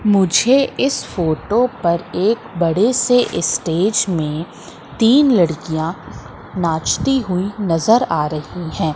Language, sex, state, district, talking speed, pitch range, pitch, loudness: Hindi, female, Madhya Pradesh, Katni, 115 wpm, 165-235 Hz, 190 Hz, -17 LUFS